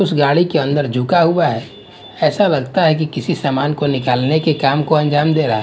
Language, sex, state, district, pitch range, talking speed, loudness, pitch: Hindi, male, Punjab, Fazilka, 135-160 Hz, 225 wpm, -15 LUFS, 150 Hz